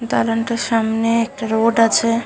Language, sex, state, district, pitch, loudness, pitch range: Bengali, female, West Bengal, Malda, 230 Hz, -17 LUFS, 225-230 Hz